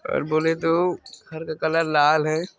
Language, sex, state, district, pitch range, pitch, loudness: Hindi, female, Bihar, Saran, 155-165 Hz, 160 Hz, -21 LUFS